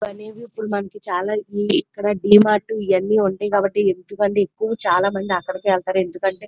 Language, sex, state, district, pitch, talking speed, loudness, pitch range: Telugu, female, Andhra Pradesh, Krishna, 205 Hz, 120 wpm, -19 LUFS, 190-210 Hz